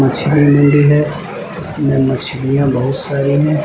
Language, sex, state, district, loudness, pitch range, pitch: Hindi, male, Uttar Pradesh, Lucknow, -13 LUFS, 135-150 Hz, 145 Hz